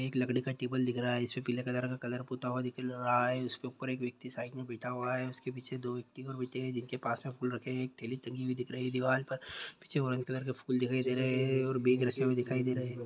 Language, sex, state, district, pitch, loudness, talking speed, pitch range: Hindi, male, Bihar, Jahanabad, 125 Hz, -35 LUFS, 315 wpm, 125-130 Hz